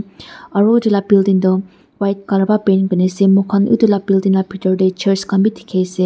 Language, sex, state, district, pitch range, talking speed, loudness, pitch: Nagamese, female, Nagaland, Dimapur, 190-205 Hz, 220 wpm, -15 LUFS, 195 Hz